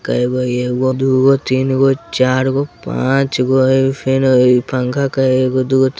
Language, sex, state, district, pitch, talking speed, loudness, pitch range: Bajjika, male, Bihar, Vaishali, 130 Hz, 160 wpm, -14 LUFS, 130-135 Hz